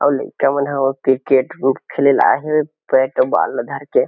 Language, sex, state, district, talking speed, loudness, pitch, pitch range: Chhattisgarhi, male, Chhattisgarh, Kabirdham, 235 wpm, -17 LUFS, 140 Hz, 135-160 Hz